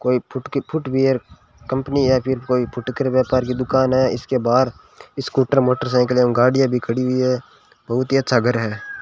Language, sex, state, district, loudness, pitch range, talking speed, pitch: Hindi, male, Rajasthan, Bikaner, -19 LUFS, 125-130 Hz, 185 wpm, 125 Hz